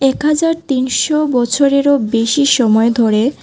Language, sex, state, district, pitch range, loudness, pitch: Bengali, female, Tripura, West Tripura, 235-285 Hz, -13 LUFS, 265 Hz